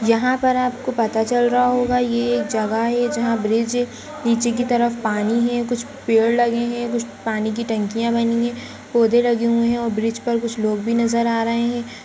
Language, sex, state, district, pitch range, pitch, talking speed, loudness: Hindi, female, Uttar Pradesh, Jyotiba Phule Nagar, 230-240 Hz, 235 Hz, 200 wpm, -20 LUFS